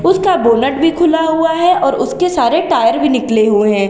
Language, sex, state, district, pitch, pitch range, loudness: Hindi, female, Uttar Pradesh, Lalitpur, 325 Hz, 240-345 Hz, -12 LUFS